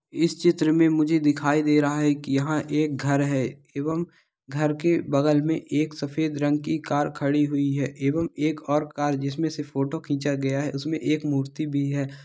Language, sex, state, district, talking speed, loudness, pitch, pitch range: Hindi, male, Andhra Pradesh, Visakhapatnam, 205 wpm, -24 LUFS, 145 Hz, 140-155 Hz